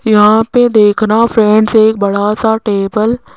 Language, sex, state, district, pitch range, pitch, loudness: Hindi, female, Rajasthan, Jaipur, 210-225 Hz, 215 Hz, -10 LUFS